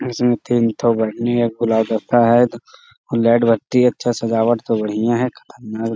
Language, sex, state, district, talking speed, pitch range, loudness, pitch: Hindi, male, Bihar, Jamui, 160 wpm, 115-120 Hz, -17 LUFS, 115 Hz